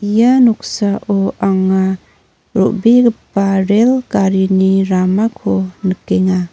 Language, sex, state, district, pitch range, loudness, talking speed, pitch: Garo, female, Meghalaya, North Garo Hills, 190-220 Hz, -14 LUFS, 75 wpm, 195 Hz